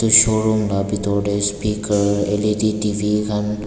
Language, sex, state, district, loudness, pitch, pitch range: Nagamese, male, Nagaland, Dimapur, -18 LUFS, 105 Hz, 100-105 Hz